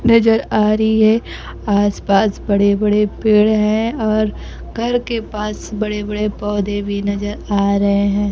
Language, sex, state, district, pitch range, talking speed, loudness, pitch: Hindi, female, Bihar, Kaimur, 205-220 Hz, 135 wpm, -16 LUFS, 210 Hz